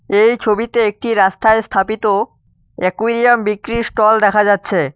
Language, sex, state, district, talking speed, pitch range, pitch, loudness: Bengali, male, West Bengal, Cooch Behar, 120 wpm, 205-230 Hz, 215 Hz, -14 LUFS